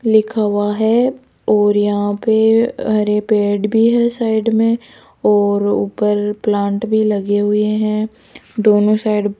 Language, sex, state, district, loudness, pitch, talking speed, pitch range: Hindi, female, Rajasthan, Jaipur, -15 LUFS, 210 Hz, 140 wpm, 205-220 Hz